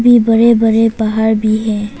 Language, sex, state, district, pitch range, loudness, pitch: Hindi, female, Arunachal Pradesh, Papum Pare, 215-230 Hz, -12 LUFS, 220 Hz